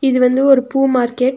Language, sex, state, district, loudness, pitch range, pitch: Tamil, female, Tamil Nadu, Nilgiris, -14 LUFS, 250-270 Hz, 260 Hz